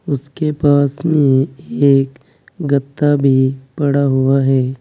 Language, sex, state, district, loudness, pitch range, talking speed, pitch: Hindi, male, Uttar Pradesh, Saharanpur, -15 LUFS, 135-145 Hz, 110 wpm, 140 Hz